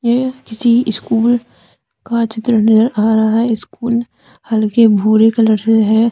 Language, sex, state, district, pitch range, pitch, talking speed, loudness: Hindi, female, Jharkhand, Deoghar, 220-235 Hz, 225 Hz, 145 wpm, -13 LUFS